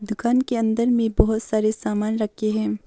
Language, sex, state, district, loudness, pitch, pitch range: Hindi, female, Arunachal Pradesh, Papum Pare, -22 LUFS, 220 Hz, 215-230 Hz